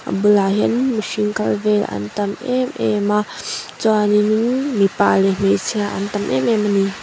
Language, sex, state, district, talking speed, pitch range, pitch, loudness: Mizo, female, Mizoram, Aizawl, 170 wpm, 200-215 Hz, 210 Hz, -18 LUFS